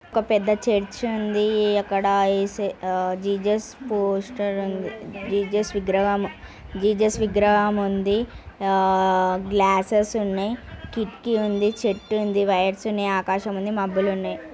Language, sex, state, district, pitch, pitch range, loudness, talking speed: Telugu, female, Andhra Pradesh, Srikakulam, 200 Hz, 195-210 Hz, -23 LUFS, 105 wpm